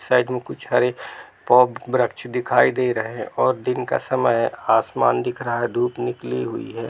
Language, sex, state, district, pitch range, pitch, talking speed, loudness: Hindi, male, Bihar, Sitamarhi, 115-125 Hz, 120 Hz, 200 wpm, -21 LUFS